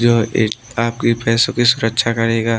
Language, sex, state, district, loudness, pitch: Hindi, male, Maharashtra, Washim, -16 LUFS, 115 Hz